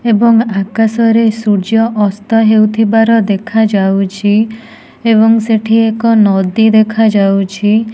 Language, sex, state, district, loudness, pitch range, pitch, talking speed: Odia, female, Odisha, Nuapada, -10 LUFS, 205-225 Hz, 220 Hz, 90 wpm